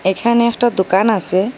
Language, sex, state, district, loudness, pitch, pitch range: Bengali, female, Assam, Hailakandi, -15 LUFS, 220 Hz, 190-235 Hz